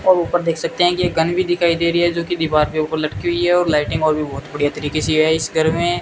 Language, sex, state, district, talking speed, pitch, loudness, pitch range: Hindi, male, Rajasthan, Bikaner, 330 wpm, 160 Hz, -18 LUFS, 155-175 Hz